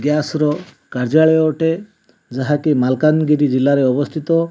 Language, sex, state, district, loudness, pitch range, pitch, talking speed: Odia, male, Odisha, Malkangiri, -16 LUFS, 140-160 Hz, 150 Hz, 105 wpm